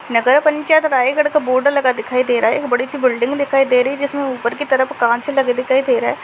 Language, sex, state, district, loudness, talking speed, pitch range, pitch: Hindi, female, Chhattisgarh, Raigarh, -16 LUFS, 270 wpm, 250-285 Hz, 265 Hz